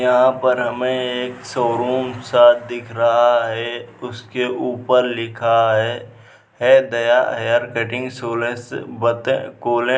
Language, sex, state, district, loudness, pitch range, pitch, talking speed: Hindi, male, Bihar, Vaishali, -18 LUFS, 115-125 Hz, 120 Hz, 110 wpm